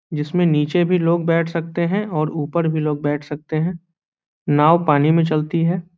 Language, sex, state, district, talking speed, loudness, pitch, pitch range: Hindi, male, Bihar, Saran, 190 wpm, -19 LUFS, 165 Hz, 150-170 Hz